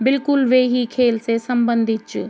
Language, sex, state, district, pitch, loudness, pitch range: Garhwali, female, Uttarakhand, Tehri Garhwal, 245 Hz, -18 LUFS, 230-255 Hz